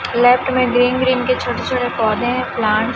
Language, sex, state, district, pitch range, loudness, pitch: Hindi, female, Chhattisgarh, Raipur, 235-255 Hz, -16 LUFS, 245 Hz